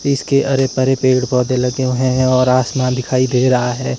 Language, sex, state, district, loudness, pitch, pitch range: Hindi, male, Himachal Pradesh, Shimla, -15 LUFS, 130 Hz, 125-130 Hz